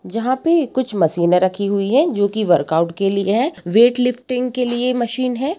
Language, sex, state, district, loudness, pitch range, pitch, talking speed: Hindi, female, Bihar, Jamui, -17 LUFS, 195-255 Hz, 235 Hz, 215 wpm